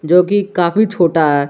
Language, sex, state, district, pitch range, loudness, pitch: Hindi, male, Jharkhand, Garhwa, 160-200 Hz, -14 LUFS, 175 Hz